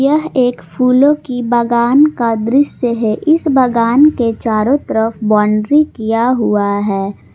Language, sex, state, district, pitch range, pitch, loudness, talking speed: Hindi, female, Jharkhand, Palamu, 220-275 Hz, 240 Hz, -13 LUFS, 140 wpm